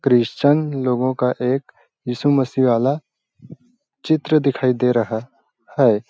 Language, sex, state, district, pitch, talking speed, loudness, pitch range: Hindi, male, Chhattisgarh, Balrampur, 130 Hz, 130 wpm, -19 LUFS, 125-145 Hz